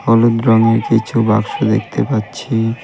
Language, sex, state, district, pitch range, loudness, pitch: Bengali, male, West Bengal, Cooch Behar, 110-115 Hz, -15 LUFS, 115 Hz